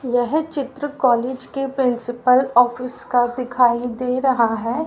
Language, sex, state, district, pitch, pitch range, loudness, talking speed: Hindi, female, Haryana, Rohtak, 250 Hz, 245-270 Hz, -19 LUFS, 135 wpm